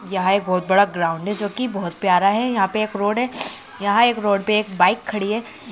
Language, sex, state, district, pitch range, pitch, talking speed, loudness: Hindi, male, Bihar, Kishanganj, 190-215 Hz, 205 Hz, 240 wpm, -20 LUFS